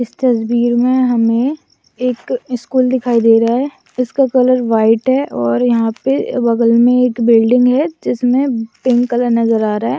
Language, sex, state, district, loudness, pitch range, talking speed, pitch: Hindi, female, Bihar, Kishanganj, -14 LUFS, 230-255 Hz, 175 wpm, 245 Hz